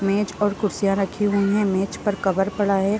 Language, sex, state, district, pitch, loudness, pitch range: Hindi, female, Chhattisgarh, Bilaspur, 200 Hz, -22 LUFS, 195-205 Hz